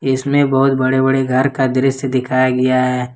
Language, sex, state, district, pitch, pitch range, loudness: Hindi, male, Jharkhand, Ranchi, 130 Hz, 130-135 Hz, -15 LUFS